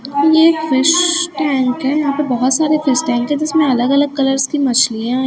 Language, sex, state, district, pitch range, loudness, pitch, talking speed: Hindi, female, Chhattisgarh, Raipur, 260-305 Hz, -14 LUFS, 280 Hz, 205 wpm